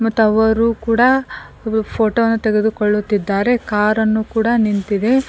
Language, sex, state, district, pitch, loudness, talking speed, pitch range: Kannada, female, Karnataka, Koppal, 220 Hz, -16 LUFS, 80 wpm, 215-230 Hz